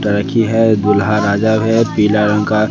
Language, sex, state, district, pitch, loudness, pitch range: Hindi, male, Bihar, West Champaran, 105 Hz, -13 LUFS, 105-110 Hz